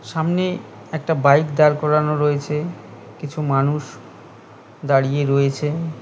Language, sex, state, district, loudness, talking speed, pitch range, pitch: Bengali, male, West Bengal, Cooch Behar, -19 LUFS, 100 wpm, 140-155 Hz, 150 Hz